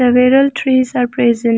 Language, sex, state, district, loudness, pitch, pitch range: English, female, Arunachal Pradesh, Lower Dibang Valley, -13 LUFS, 250 Hz, 240-260 Hz